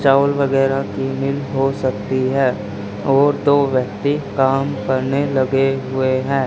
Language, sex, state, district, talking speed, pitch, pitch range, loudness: Hindi, male, Haryana, Charkhi Dadri, 140 wpm, 135 Hz, 130-140 Hz, -18 LUFS